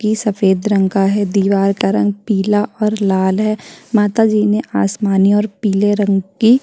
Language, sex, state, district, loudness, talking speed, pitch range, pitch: Hindi, female, Chhattisgarh, Kabirdham, -15 LUFS, 190 wpm, 195-215 Hz, 205 Hz